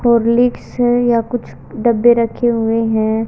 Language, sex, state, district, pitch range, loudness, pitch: Hindi, male, Haryana, Charkhi Dadri, 225-240 Hz, -15 LUFS, 235 Hz